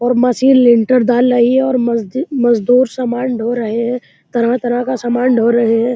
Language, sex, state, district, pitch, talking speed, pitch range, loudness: Hindi, male, Uttar Pradesh, Muzaffarnagar, 245 Hz, 190 wpm, 235-250 Hz, -13 LUFS